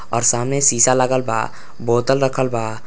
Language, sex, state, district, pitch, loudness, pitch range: Hindi, male, Bihar, Gopalganj, 120 Hz, -17 LUFS, 115-130 Hz